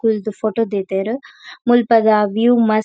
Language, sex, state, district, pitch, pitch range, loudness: Tulu, female, Karnataka, Dakshina Kannada, 220 Hz, 215-230 Hz, -16 LUFS